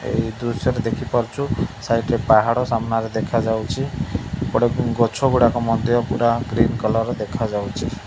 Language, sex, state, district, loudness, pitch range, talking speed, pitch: Odia, male, Odisha, Malkangiri, -20 LUFS, 115-120 Hz, 140 wpm, 115 Hz